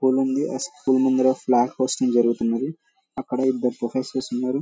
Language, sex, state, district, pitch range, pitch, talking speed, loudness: Telugu, male, Telangana, Karimnagar, 125-135 Hz, 130 Hz, 155 wpm, -22 LUFS